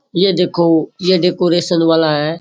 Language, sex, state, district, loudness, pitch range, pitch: Rajasthani, male, Rajasthan, Churu, -14 LUFS, 165-180 Hz, 175 Hz